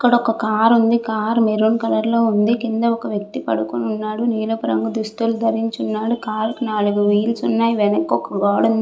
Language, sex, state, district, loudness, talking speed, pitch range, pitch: Telugu, female, Andhra Pradesh, Visakhapatnam, -19 LUFS, 190 wpm, 215-230 Hz, 220 Hz